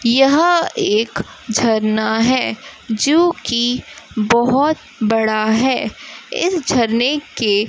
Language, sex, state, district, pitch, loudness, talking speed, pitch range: Hindi, female, Chhattisgarh, Raipur, 240 Hz, -16 LUFS, 85 wpm, 220-285 Hz